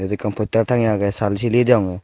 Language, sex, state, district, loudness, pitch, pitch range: Chakma, male, Tripura, Dhalai, -18 LUFS, 105 Hz, 100-115 Hz